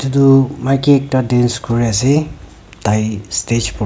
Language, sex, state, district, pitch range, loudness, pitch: Nagamese, female, Nagaland, Kohima, 110-135 Hz, -15 LUFS, 120 Hz